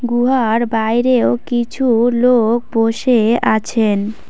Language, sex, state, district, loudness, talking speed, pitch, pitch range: Bengali, female, West Bengal, Cooch Behar, -15 LUFS, 85 wpm, 235 Hz, 225-245 Hz